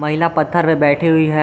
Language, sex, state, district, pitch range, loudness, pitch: Hindi, male, Jharkhand, Garhwa, 150-165 Hz, -15 LUFS, 155 Hz